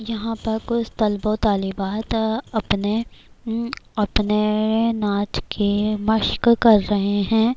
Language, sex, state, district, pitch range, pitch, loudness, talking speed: Urdu, female, Bihar, Kishanganj, 205-225 Hz, 220 Hz, -21 LUFS, 85 wpm